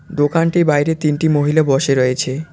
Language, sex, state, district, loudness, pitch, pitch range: Bengali, male, West Bengal, Cooch Behar, -15 LUFS, 150 Hz, 140-160 Hz